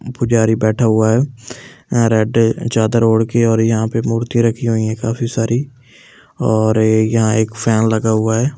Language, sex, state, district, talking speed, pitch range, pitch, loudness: Hindi, male, Delhi, New Delhi, 175 wpm, 110-120 Hz, 115 Hz, -15 LUFS